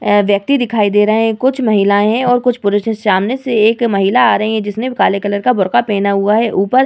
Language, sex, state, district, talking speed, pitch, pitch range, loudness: Hindi, female, Bihar, Vaishali, 245 wpm, 215 Hz, 200-245 Hz, -13 LUFS